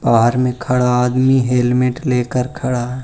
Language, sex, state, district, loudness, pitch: Hindi, male, Arunachal Pradesh, Lower Dibang Valley, -16 LUFS, 125 Hz